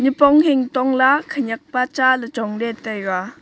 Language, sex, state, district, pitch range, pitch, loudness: Wancho, female, Arunachal Pradesh, Longding, 225-275 Hz, 255 Hz, -18 LUFS